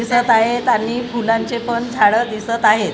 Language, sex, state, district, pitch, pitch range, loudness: Marathi, female, Maharashtra, Gondia, 230 Hz, 225-240 Hz, -16 LUFS